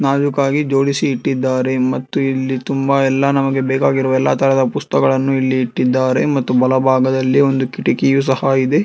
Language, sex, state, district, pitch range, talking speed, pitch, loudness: Kannada, male, Karnataka, Bangalore, 130-135 Hz, 140 wpm, 135 Hz, -15 LUFS